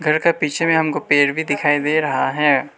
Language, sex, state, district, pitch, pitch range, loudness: Hindi, male, Arunachal Pradesh, Lower Dibang Valley, 150 Hz, 145-160 Hz, -17 LUFS